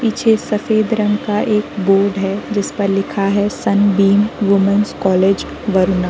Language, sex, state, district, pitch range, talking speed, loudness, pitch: Hindi, female, Uttar Pradesh, Varanasi, 195-210 Hz, 145 wpm, -15 LUFS, 200 Hz